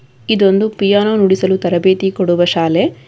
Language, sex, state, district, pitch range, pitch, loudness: Kannada, female, Karnataka, Bangalore, 175-200 Hz, 190 Hz, -13 LUFS